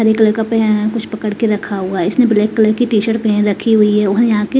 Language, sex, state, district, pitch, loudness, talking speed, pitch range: Hindi, female, Himachal Pradesh, Shimla, 215 Hz, -14 LUFS, 285 wpm, 210-225 Hz